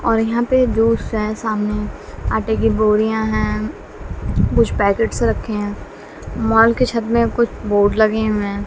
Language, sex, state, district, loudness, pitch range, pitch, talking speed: Hindi, female, Bihar, West Champaran, -17 LUFS, 205-230 Hz, 220 Hz, 150 wpm